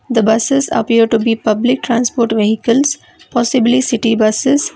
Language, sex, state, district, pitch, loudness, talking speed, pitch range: English, female, Karnataka, Bangalore, 235 Hz, -14 LUFS, 140 wpm, 225-255 Hz